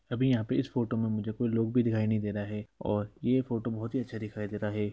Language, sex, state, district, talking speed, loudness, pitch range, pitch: Hindi, male, Bihar, East Champaran, 305 wpm, -31 LUFS, 105-120 Hz, 110 Hz